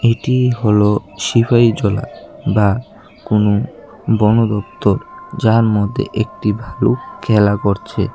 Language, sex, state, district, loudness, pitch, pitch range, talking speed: Bengali, male, Tripura, West Tripura, -16 LUFS, 110 Hz, 105-115 Hz, 80 wpm